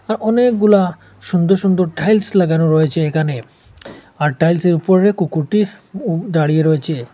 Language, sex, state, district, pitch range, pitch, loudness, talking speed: Bengali, male, Assam, Hailakandi, 160-200 Hz, 175 Hz, -15 LUFS, 125 wpm